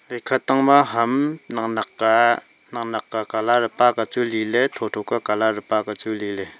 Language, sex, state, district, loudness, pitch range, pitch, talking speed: Wancho, male, Arunachal Pradesh, Longding, -21 LUFS, 110-120 Hz, 115 Hz, 155 wpm